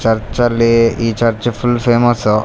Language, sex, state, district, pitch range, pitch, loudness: Kannada, male, Karnataka, Raichur, 115-120 Hz, 115 Hz, -14 LUFS